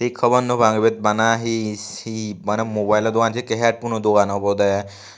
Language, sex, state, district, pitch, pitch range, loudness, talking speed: Chakma, male, Tripura, Unakoti, 110 Hz, 105-115 Hz, -19 LUFS, 160 wpm